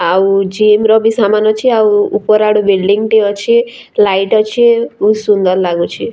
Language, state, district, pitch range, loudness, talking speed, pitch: Sambalpuri, Odisha, Sambalpur, 200-220 Hz, -11 LUFS, 165 wpm, 215 Hz